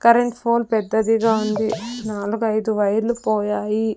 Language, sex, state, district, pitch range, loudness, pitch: Telugu, female, Andhra Pradesh, Sri Satya Sai, 215-230 Hz, -20 LUFS, 220 Hz